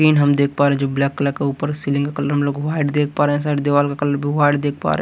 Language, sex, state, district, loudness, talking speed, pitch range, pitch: Hindi, male, Haryana, Rohtak, -18 LUFS, 345 wpm, 140-145 Hz, 145 Hz